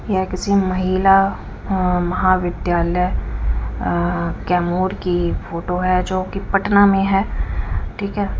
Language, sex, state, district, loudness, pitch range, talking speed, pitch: Hindi, female, Bihar, Kaimur, -19 LUFS, 175-195 Hz, 120 wpm, 185 Hz